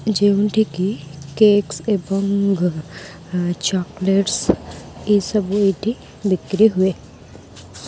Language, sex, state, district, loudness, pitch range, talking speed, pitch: Odia, female, Odisha, Khordha, -19 LUFS, 175-205 Hz, 70 wpm, 195 Hz